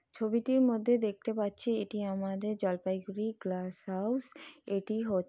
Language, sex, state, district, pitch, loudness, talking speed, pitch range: Bengali, female, West Bengal, Jalpaiguri, 215 Hz, -33 LUFS, 135 wpm, 195-235 Hz